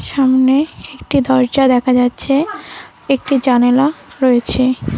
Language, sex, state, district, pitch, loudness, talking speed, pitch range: Bengali, female, West Bengal, Cooch Behar, 265 Hz, -13 LUFS, 95 wpm, 255-275 Hz